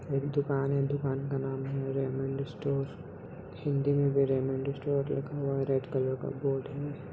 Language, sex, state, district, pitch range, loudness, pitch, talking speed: Hindi, male, Bihar, Samastipur, 135-140 Hz, -32 LUFS, 135 Hz, 185 wpm